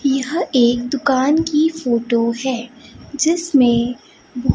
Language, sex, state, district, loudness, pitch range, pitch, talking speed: Hindi, female, Chhattisgarh, Raipur, -17 LUFS, 240-300 Hz, 260 Hz, 105 wpm